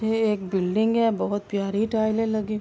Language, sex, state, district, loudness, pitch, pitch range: Urdu, female, Andhra Pradesh, Anantapur, -24 LUFS, 215 Hz, 205-220 Hz